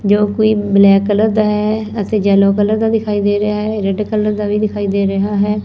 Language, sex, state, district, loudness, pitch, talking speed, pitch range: Punjabi, female, Punjab, Fazilka, -14 LUFS, 210 Hz, 225 wpm, 205-215 Hz